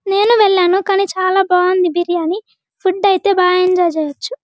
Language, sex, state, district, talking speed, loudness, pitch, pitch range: Telugu, female, Andhra Pradesh, Guntur, 150 wpm, -14 LUFS, 375 Hz, 360-395 Hz